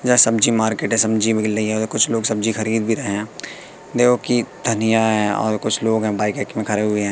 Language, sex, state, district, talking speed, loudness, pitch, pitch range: Hindi, male, Madhya Pradesh, Katni, 255 wpm, -18 LUFS, 110 Hz, 110-115 Hz